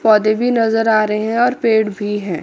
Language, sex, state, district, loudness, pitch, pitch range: Hindi, female, Chandigarh, Chandigarh, -15 LUFS, 220 Hz, 210-230 Hz